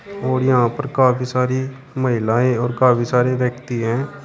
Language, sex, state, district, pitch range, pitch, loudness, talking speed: Hindi, male, Uttar Pradesh, Shamli, 120-130 Hz, 125 Hz, -18 LUFS, 155 wpm